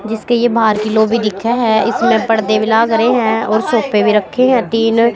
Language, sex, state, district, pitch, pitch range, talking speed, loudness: Hindi, female, Haryana, Jhajjar, 225 Hz, 220-235 Hz, 220 wpm, -13 LUFS